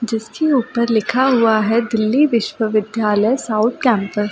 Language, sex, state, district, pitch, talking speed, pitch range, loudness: Hindi, female, Delhi, New Delhi, 225 Hz, 155 wpm, 215-240 Hz, -17 LUFS